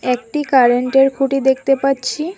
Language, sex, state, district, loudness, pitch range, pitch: Bengali, female, West Bengal, Alipurduar, -15 LUFS, 255-275 Hz, 270 Hz